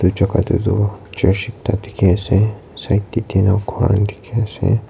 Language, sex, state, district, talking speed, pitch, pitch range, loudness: Nagamese, male, Nagaland, Kohima, 170 wpm, 105 Hz, 100-115 Hz, -18 LUFS